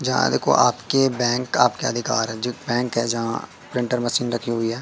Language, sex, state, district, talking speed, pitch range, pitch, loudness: Hindi, male, Madhya Pradesh, Katni, 175 wpm, 115-125 Hz, 120 Hz, -21 LUFS